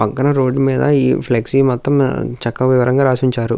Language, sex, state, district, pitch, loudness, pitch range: Telugu, male, Andhra Pradesh, Krishna, 130 Hz, -15 LUFS, 125-135 Hz